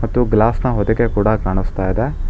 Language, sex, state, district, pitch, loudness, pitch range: Kannada, male, Karnataka, Bangalore, 110 Hz, -17 LUFS, 100-120 Hz